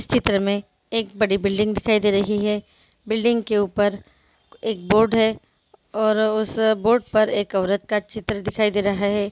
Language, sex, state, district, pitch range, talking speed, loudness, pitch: Hindi, female, Bihar, Sitamarhi, 205-220 Hz, 175 wpm, -21 LUFS, 210 Hz